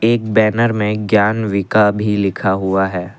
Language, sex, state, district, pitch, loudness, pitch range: Hindi, male, Assam, Kamrup Metropolitan, 105 Hz, -15 LUFS, 100-110 Hz